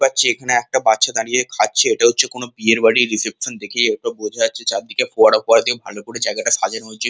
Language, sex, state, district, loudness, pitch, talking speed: Bengali, male, West Bengal, Kolkata, -17 LUFS, 125 Hz, 205 wpm